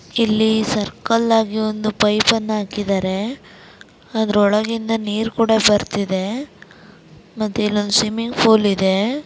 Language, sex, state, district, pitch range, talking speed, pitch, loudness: Kannada, female, Karnataka, Dharwad, 205-225 Hz, 115 wpm, 215 Hz, -18 LUFS